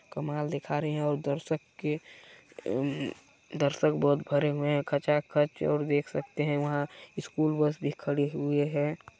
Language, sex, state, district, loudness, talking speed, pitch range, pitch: Hindi, female, Chhattisgarh, Balrampur, -30 LUFS, 155 wpm, 145-150 Hz, 145 Hz